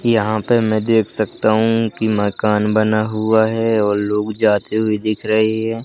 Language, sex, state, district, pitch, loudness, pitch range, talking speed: Hindi, male, Madhya Pradesh, Katni, 110 Hz, -17 LUFS, 105-110 Hz, 185 wpm